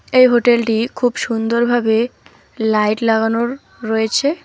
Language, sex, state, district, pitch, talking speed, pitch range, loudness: Bengali, female, West Bengal, Alipurduar, 235 Hz, 95 wpm, 220-245 Hz, -16 LUFS